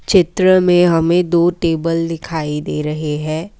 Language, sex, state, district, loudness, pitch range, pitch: Hindi, female, Assam, Kamrup Metropolitan, -15 LUFS, 155-175 Hz, 165 Hz